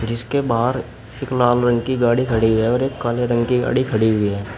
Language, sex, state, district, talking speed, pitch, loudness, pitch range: Hindi, male, Uttar Pradesh, Shamli, 235 wpm, 120 Hz, -18 LUFS, 115-125 Hz